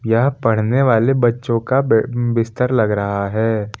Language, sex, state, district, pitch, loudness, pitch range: Hindi, male, Jharkhand, Palamu, 115 Hz, -17 LUFS, 110-125 Hz